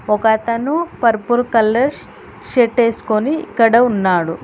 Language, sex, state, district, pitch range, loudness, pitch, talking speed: Telugu, female, Telangana, Hyderabad, 215-245 Hz, -15 LUFS, 230 Hz, 110 wpm